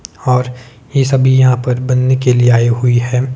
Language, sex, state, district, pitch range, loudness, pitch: Hindi, male, Himachal Pradesh, Shimla, 125-130 Hz, -12 LUFS, 125 Hz